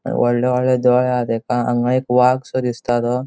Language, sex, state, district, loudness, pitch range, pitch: Konkani, male, Goa, North and South Goa, -17 LUFS, 120-125 Hz, 125 Hz